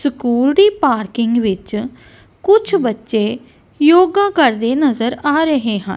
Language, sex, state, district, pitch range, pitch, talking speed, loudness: Punjabi, female, Punjab, Kapurthala, 230-315 Hz, 260 Hz, 120 wpm, -15 LUFS